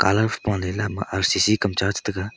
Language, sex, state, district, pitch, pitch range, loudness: Wancho, male, Arunachal Pradesh, Longding, 100 Hz, 95-105 Hz, -22 LUFS